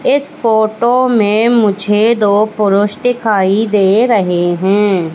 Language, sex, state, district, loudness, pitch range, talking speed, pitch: Hindi, female, Madhya Pradesh, Katni, -12 LUFS, 200-230 Hz, 115 wpm, 210 Hz